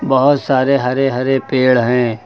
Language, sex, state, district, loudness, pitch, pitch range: Hindi, male, Uttar Pradesh, Lucknow, -14 LUFS, 130 Hz, 125-135 Hz